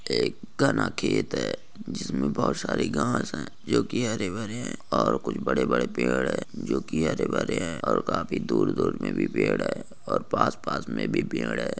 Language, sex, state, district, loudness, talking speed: Hindi, male, Jharkhand, Jamtara, -27 LUFS, 185 wpm